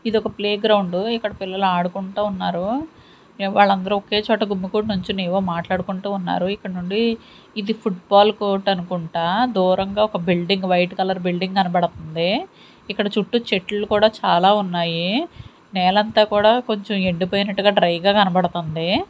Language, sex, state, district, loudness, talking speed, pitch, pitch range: Telugu, female, Andhra Pradesh, Sri Satya Sai, -20 LUFS, 130 wpm, 200 Hz, 185-215 Hz